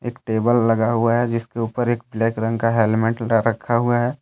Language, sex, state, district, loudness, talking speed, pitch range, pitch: Hindi, male, Jharkhand, Deoghar, -20 LUFS, 215 wpm, 115-120 Hz, 115 Hz